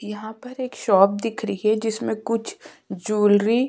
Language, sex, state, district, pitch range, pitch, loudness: Hindi, female, Uttarakhand, Tehri Garhwal, 210-230 Hz, 220 Hz, -22 LUFS